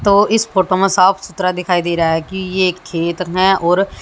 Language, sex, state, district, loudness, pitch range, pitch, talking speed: Hindi, female, Haryana, Jhajjar, -15 LUFS, 180-195 Hz, 185 Hz, 225 wpm